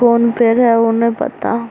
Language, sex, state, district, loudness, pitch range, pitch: Hindi, female, Bihar, Samastipur, -14 LUFS, 230-240 Hz, 235 Hz